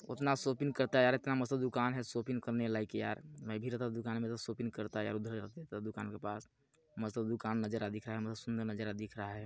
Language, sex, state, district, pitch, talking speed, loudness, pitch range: Hindi, male, Chhattisgarh, Balrampur, 115 Hz, 255 wpm, -38 LUFS, 110-125 Hz